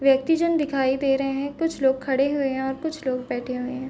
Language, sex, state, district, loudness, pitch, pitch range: Hindi, female, Chhattisgarh, Korba, -24 LUFS, 270 Hz, 265-285 Hz